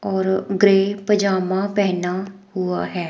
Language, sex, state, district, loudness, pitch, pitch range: Hindi, female, Himachal Pradesh, Shimla, -20 LUFS, 195 Hz, 185-200 Hz